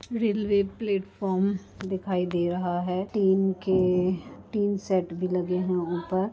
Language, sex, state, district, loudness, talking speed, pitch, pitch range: Hindi, female, Bihar, Gaya, -27 LUFS, 140 wpm, 190 Hz, 180-200 Hz